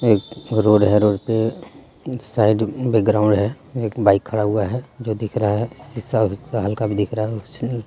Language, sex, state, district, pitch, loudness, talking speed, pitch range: Hindi, male, Jharkhand, Deoghar, 110 Hz, -20 LUFS, 175 wpm, 105-120 Hz